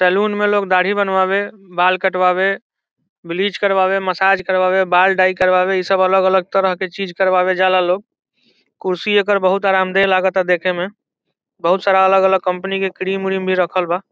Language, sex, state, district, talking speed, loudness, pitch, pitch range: Bhojpuri, male, Bihar, Saran, 165 wpm, -16 LUFS, 190 Hz, 185-195 Hz